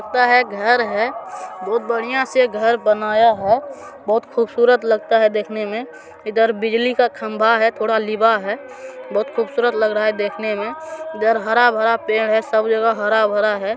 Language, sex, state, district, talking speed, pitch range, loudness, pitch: Hindi, male, Bihar, Supaul, 195 wpm, 215-245 Hz, -18 LUFS, 225 Hz